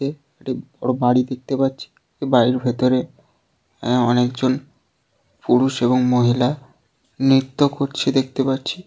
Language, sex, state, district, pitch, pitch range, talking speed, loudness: Bengali, male, West Bengal, Jalpaiguri, 130 Hz, 125-135 Hz, 100 wpm, -19 LUFS